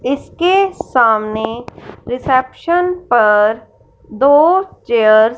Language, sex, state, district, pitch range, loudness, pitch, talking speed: Hindi, male, Punjab, Fazilka, 220-345 Hz, -14 LUFS, 255 Hz, 80 wpm